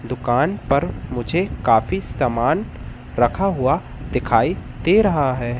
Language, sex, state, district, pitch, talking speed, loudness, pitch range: Hindi, male, Madhya Pradesh, Katni, 120 Hz, 120 wpm, -20 LUFS, 115-145 Hz